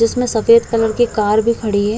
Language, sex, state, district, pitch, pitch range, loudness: Hindi, female, Uttar Pradesh, Hamirpur, 230 Hz, 215-235 Hz, -15 LUFS